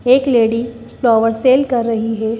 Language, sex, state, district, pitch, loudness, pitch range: Hindi, female, Madhya Pradesh, Bhopal, 235 Hz, -15 LUFS, 225-255 Hz